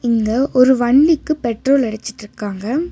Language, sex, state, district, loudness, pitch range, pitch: Tamil, female, Tamil Nadu, Nilgiris, -16 LUFS, 220-275 Hz, 245 Hz